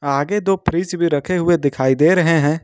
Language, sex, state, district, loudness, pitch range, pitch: Hindi, male, Jharkhand, Ranchi, -17 LUFS, 145-180 Hz, 165 Hz